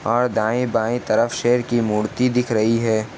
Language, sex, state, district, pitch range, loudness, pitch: Hindi, male, Uttar Pradesh, Etah, 110-120 Hz, -20 LUFS, 120 Hz